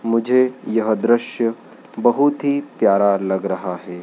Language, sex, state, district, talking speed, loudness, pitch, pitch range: Hindi, male, Madhya Pradesh, Dhar, 135 wpm, -19 LUFS, 115 Hz, 95-120 Hz